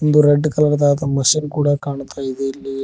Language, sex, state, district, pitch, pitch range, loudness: Kannada, male, Karnataka, Koppal, 145 Hz, 135-150 Hz, -17 LUFS